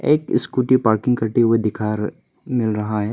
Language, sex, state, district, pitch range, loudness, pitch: Hindi, male, Arunachal Pradesh, Papum Pare, 105-125 Hz, -19 LUFS, 110 Hz